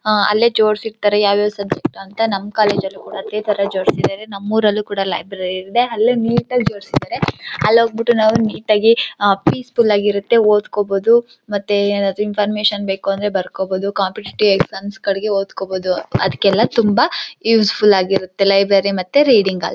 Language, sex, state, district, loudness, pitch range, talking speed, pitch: Kannada, female, Karnataka, Chamarajanagar, -16 LUFS, 195-220 Hz, 145 wpm, 205 Hz